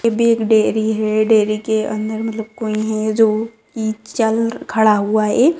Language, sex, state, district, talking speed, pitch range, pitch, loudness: Magahi, female, Bihar, Gaya, 195 wpm, 215-225 Hz, 220 Hz, -17 LUFS